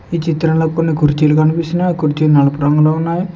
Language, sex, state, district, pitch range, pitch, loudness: Telugu, male, Telangana, Mahabubabad, 150-165 Hz, 160 Hz, -14 LUFS